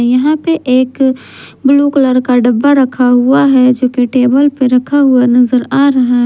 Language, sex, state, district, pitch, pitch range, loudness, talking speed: Hindi, female, Jharkhand, Garhwa, 255 Hz, 250-275 Hz, -10 LUFS, 180 wpm